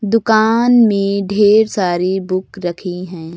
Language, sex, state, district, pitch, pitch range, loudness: Hindi, female, Uttar Pradesh, Lucknow, 195 Hz, 180-215 Hz, -14 LUFS